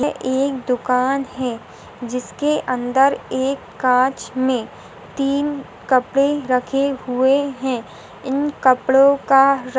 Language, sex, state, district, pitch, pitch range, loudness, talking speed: Hindi, female, Maharashtra, Sindhudurg, 265 Hz, 255-275 Hz, -19 LUFS, 105 wpm